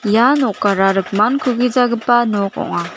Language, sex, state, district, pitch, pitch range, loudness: Garo, female, Meghalaya, West Garo Hills, 235 Hz, 200-250 Hz, -15 LUFS